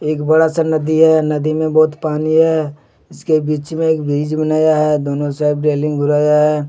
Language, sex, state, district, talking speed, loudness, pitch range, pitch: Hindi, male, Jharkhand, Deoghar, 195 wpm, -15 LUFS, 150-155 Hz, 155 Hz